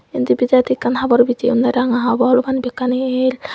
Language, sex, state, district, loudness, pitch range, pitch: Chakma, female, Tripura, Dhalai, -16 LUFS, 245-255 Hz, 250 Hz